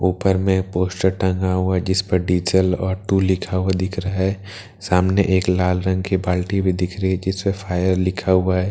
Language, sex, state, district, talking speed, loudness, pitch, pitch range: Hindi, male, Bihar, Katihar, 220 wpm, -20 LUFS, 95 Hz, 90-95 Hz